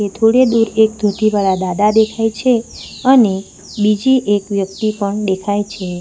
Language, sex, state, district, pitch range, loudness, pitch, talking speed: Gujarati, female, Gujarat, Valsad, 200-225 Hz, -15 LUFS, 210 Hz, 150 wpm